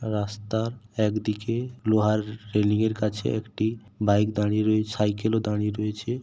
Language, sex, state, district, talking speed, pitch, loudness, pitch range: Bengali, male, West Bengal, Paschim Medinipur, 135 wpm, 110 Hz, -26 LUFS, 105-110 Hz